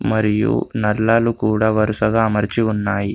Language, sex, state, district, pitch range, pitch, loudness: Telugu, male, Telangana, Komaram Bheem, 105-110 Hz, 110 Hz, -18 LUFS